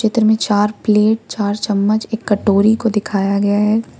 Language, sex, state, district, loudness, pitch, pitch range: Hindi, female, Jharkhand, Ranchi, -15 LUFS, 210 Hz, 205-220 Hz